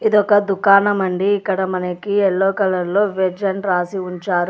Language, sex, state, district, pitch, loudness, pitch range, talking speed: Telugu, female, Telangana, Hyderabad, 195 Hz, -17 LUFS, 185-200 Hz, 145 wpm